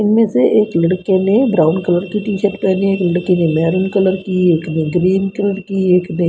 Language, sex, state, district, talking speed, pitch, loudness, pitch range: Hindi, female, Haryana, Rohtak, 240 wpm, 185 Hz, -15 LUFS, 175-195 Hz